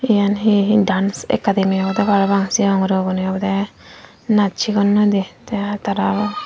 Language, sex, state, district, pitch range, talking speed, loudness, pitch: Chakma, female, Tripura, Dhalai, 195-210 Hz, 130 wpm, -17 LUFS, 200 Hz